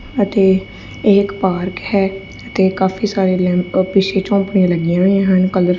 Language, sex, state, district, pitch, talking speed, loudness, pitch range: Punjabi, female, Punjab, Kapurthala, 190 Hz, 145 wpm, -15 LUFS, 185-195 Hz